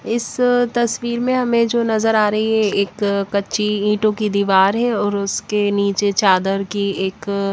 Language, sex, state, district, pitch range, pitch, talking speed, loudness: Hindi, female, Bihar, West Champaran, 200-230 Hz, 210 Hz, 165 wpm, -18 LUFS